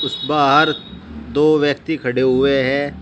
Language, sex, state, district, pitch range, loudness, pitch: Hindi, male, Uttar Pradesh, Shamli, 130-145 Hz, -16 LUFS, 140 Hz